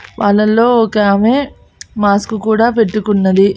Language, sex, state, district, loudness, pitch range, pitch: Telugu, female, Andhra Pradesh, Annamaya, -12 LUFS, 205-225 Hz, 215 Hz